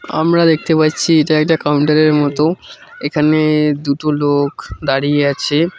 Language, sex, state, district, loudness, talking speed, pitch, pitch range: Bengali, male, West Bengal, Cooch Behar, -14 LUFS, 125 wpm, 150 Hz, 145-155 Hz